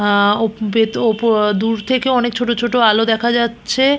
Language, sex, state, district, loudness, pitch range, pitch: Bengali, female, West Bengal, Purulia, -16 LUFS, 215-240 Hz, 225 Hz